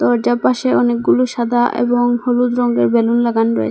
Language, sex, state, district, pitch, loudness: Bengali, female, Assam, Hailakandi, 230 Hz, -15 LUFS